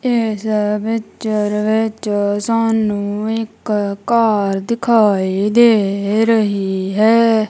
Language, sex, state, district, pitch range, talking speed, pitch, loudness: Punjabi, female, Punjab, Kapurthala, 205-225 Hz, 80 wpm, 215 Hz, -16 LUFS